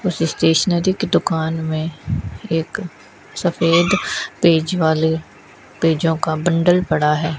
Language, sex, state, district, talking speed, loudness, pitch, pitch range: Hindi, female, Rajasthan, Bikaner, 115 wpm, -18 LUFS, 165 Hz, 160-175 Hz